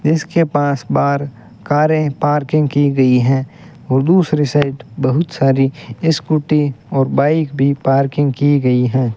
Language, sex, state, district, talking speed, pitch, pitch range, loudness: Hindi, male, Rajasthan, Bikaner, 135 wpm, 145 Hz, 135-155 Hz, -15 LUFS